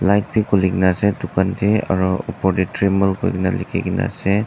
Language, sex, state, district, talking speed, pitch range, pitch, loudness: Nagamese, male, Nagaland, Dimapur, 190 wpm, 95-100 Hz, 95 Hz, -19 LUFS